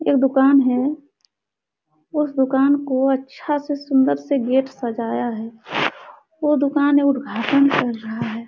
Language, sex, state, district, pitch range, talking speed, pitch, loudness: Hindi, female, Bihar, Supaul, 245-285 Hz, 140 wpm, 270 Hz, -19 LUFS